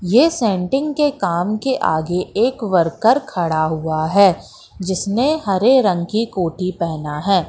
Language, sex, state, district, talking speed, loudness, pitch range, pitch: Hindi, female, Madhya Pradesh, Katni, 145 wpm, -18 LUFS, 170-235 Hz, 190 Hz